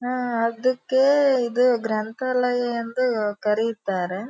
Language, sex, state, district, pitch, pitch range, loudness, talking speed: Kannada, female, Karnataka, Dharwad, 240 Hz, 220-255 Hz, -22 LUFS, 85 wpm